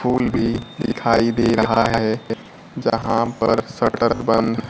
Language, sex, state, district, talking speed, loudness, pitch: Hindi, male, Bihar, Kaimur, 130 wpm, -19 LUFS, 115 Hz